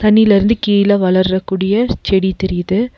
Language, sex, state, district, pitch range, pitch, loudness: Tamil, female, Tamil Nadu, Nilgiris, 190-215 Hz, 195 Hz, -14 LUFS